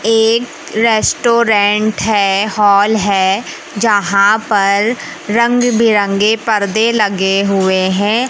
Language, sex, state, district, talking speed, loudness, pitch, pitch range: Hindi, male, Madhya Pradesh, Katni, 95 wpm, -12 LUFS, 210 Hz, 200-225 Hz